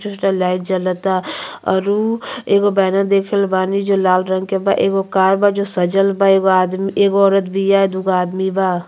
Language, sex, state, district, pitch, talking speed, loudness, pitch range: Bhojpuri, female, Uttar Pradesh, Ghazipur, 195 Hz, 205 wpm, -16 LUFS, 190-195 Hz